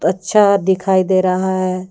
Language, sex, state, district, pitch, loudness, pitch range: Hindi, female, Jharkhand, Deoghar, 185 Hz, -15 LUFS, 185-190 Hz